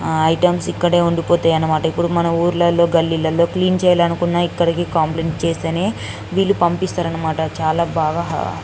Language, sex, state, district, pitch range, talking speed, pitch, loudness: Telugu, female, Andhra Pradesh, Guntur, 160-175 Hz, 145 wpm, 170 Hz, -17 LUFS